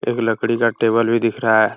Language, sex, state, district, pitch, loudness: Hindi, male, Uttar Pradesh, Hamirpur, 115 Hz, -18 LUFS